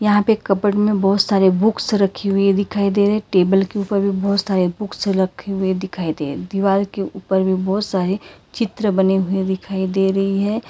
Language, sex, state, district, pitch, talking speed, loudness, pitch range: Hindi, female, Karnataka, Bangalore, 195 Hz, 215 wpm, -18 LUFS, 190-205 Hz